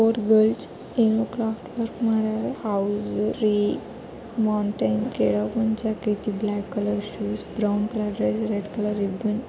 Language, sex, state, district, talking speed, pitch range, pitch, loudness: Kannada, male, Karnataka, Dharwad, 120 wpm, 205-220 Hz, 210 Hz, -25 LUFS